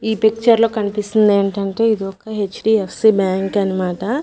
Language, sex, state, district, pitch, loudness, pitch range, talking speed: Telugu, female, Andhra Pradesh, Manyam, 210 Hz, -17 LUFS, 195-220 Hz, 125 wpm